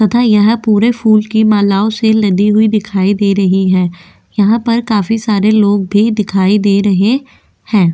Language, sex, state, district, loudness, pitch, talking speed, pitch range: Hindi, female, Goa, North and South Goa, -11 LUFS, 210 Hz, 175 wpm, 200-220 Hz